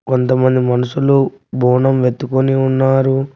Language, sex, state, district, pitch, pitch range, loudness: Telugu, male, Telangana, Mahabubabad, 130 Hz, 130-135 Hz, -14 LUFS